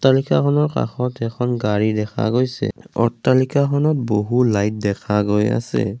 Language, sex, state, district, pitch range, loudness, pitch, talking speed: Assamese, male, Assam, Kamrup Metropolitan, 105-125 Hz, -19 LUFS, 115 Hz, 120 wpm